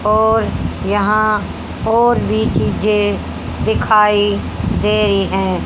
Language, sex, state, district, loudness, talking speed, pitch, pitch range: Hindi, female, Haryana, Charkhi Dadri, -15 LUFS, 95 wpm, 210 Hz, 195-215 Hz